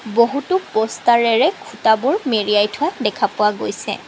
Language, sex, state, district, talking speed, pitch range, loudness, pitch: Assamese, female, Assam, Kamrup Metropolitan, 120 wpm, 215-275 Hz, -18 LUFS, 230 Hz